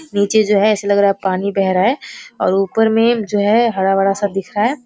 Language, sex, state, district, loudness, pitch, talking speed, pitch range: Hindi, female, Bihar, Kishanganj, -15 LUFS, 205 Hz, 260 wpm, 195-225 Hz